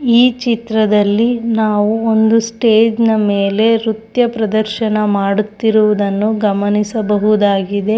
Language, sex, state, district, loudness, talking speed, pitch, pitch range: Kannada, female, Karnataka, Shimoga, -14 LUFS, 85 wpm, 220 Hz, 210-225 Hz